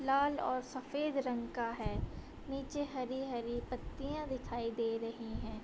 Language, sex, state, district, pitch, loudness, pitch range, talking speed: Hindi, female, Uttar Pradesh, Budaun, 255 Hz, -39 LUFS, 235-275 Hz, 160 wpm